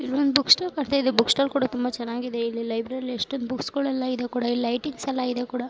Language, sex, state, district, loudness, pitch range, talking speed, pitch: Kannada, female, Karnataka, Dharwad, -25 LUFS, 245-275 Hz, 230 wpm, 255 Hz